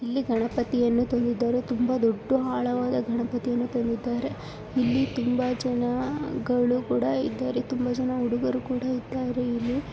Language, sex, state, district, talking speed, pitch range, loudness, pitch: Kannada, female, Karnataka, Shimoga, 110 wpm, 240-255 Hz, -26 LUFS, 245 Hz